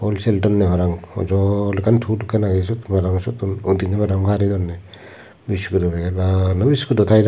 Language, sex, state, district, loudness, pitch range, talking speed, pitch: Chakma, male, Tripura, Unakoti, -19 LUFS, 95-105 Hz, 150 wpm, 100 Hz